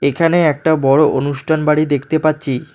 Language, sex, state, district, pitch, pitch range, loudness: Bengali, male, West Bengal, Alipurduar, 150 Hz, 140-155 Hz, -15 LUFS